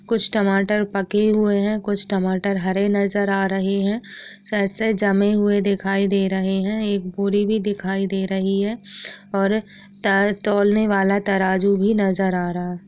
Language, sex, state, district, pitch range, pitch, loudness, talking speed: Hindi, female, Uttar Pradesh, Etah, 195-205 Hz, 200 Hz, -20 LUFS, 165 wpm